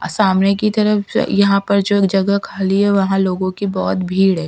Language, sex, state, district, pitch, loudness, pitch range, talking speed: Hindi, female, Bihar, Patna, 195 Hz, -16 LUFS, 190-200 Hz, 230 wpm